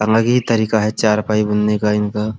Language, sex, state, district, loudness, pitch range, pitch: Hindi, male, Uttar Pradesh, Muzaffarnagar, -16 LUFS, 105-110 Hz, 105 Hz